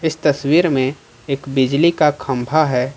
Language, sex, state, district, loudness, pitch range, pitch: Hindi, male, Jharkhand, Ranchi, -17 LUFS, 130-155 Hz, 140 Hz